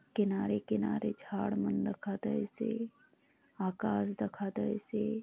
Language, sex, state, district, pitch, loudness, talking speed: Halbi, female, Chhattisgarh, Bastar, 200 Hz, -35 LUFS, 105 wpm